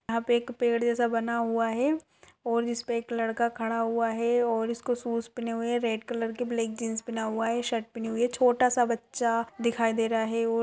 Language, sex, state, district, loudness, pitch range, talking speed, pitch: Hindi, female, Maharashtra, Solapur, -28 LUFS, 230-240 Hz, 245 wpm, 230 Hz